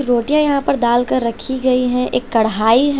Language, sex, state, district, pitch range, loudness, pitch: Hindi, female, Chhattisgarh, Raipur, 235-265 Hz, -16 LUFS, 250 Hz